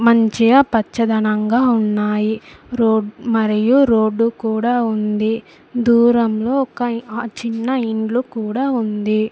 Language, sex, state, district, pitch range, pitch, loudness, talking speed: Telugu, female, Andhra Pradesh, Sri Satya Sai, 220-240 Hz, 230 Hz, -17 LUFS, 95 wpm